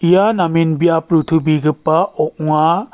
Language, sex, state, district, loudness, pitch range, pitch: Garo, male, Meghalaya, West Garo Hills, -15 LUFS, 155-175 Hz, 165 Hz